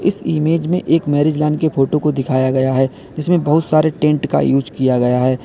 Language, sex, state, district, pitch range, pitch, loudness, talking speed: Hindi, male, Uttar Pradesh, Lalitpur, 130-155 Hz, 150 Hz, -16 LUFS, 230 wpm